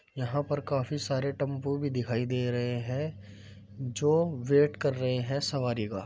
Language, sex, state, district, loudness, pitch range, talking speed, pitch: Hindi, male, Uttar Pradesh, Muzaffarnagar, -30 LUFS, 120-145 Hz, 170 wpm, 135 Hz